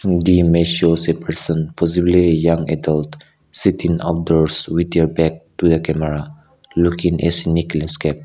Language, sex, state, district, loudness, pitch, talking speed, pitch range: English, male, Nagaland, Kohima, -16 LUFS, 85 Hz, 145 wpm, 80-85 Hz